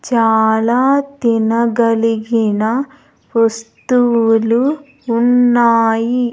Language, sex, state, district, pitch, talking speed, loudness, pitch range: Telugu, female, Andhra Pradesh, Sri Satya Sai, 235 Hz, 40 wpm, -14 LUFS, 225-250 Hz